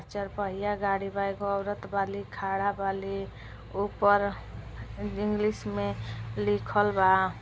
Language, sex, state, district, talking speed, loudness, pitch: Bhojpuri, female, Uttar Pradesh, Deoria, 115 wpm, -29 LUFS, 195 Hz